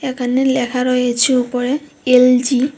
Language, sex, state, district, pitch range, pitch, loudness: Bengali, female, Tripura, West Tripura, 250-265 Hz, 255 Hz, -15 LUFS